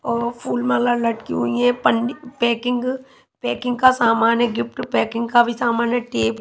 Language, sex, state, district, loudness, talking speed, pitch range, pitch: Hindi, female, Himachal Pradesh, Shimla, -19 LUFS, 180 wpm, 220-245 Hz, 235 Hz